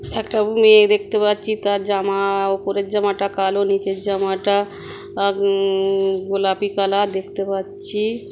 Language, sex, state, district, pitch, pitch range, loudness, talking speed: Bengali, female, West Bengal, Kolkata, 200 Hz, 195-205 Hz, -19 LUFS, 110 wpm